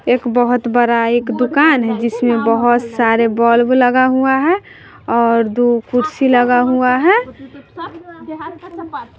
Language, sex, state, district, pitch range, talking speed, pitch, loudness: Hindi, female, Bihar, West Champaran, 235-280 Hz, 125 wpm, 245 Hz, -14 LUFS